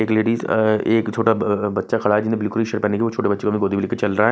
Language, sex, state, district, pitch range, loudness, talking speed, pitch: Hindi, male, Odisha, Nuapada, 105-110 Hz, -20 LUFS, 250 wpm, 110 Hz